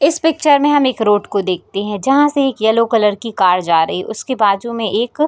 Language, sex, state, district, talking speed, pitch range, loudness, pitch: Hindi, female, Bihar, Darbhanga, 270 wpm, 205-280 Hz, -15 LUFS, 225 Hz